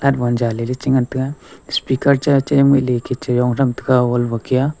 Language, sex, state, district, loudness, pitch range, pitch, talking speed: Wancho, male, Arunachal Pradesh, Longding, -17 LUFS, 125-140 Hz, 130 Hz, 100 wpm